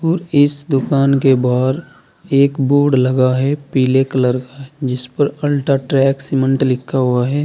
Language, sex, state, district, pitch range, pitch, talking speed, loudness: Hindi, male, Uttar Pradesh, Saharanpur, 130-145 Hz, 135 Hz, 155 wpm, -15 LUFS